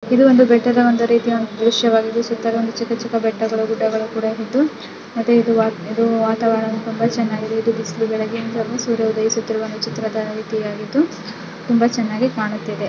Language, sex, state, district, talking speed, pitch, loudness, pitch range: Kannada, female, Karnataka, Mysore, 130 wpm, 225 Hz, -18 LUFS, 220-235 Hz